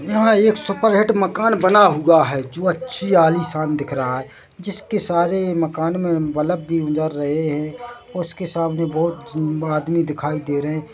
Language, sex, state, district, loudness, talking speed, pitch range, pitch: Hindi, male, Chhattisgarh, Bilaspur, -19 LUFS, 160 wpm, 155-190 Hz, 165 Hz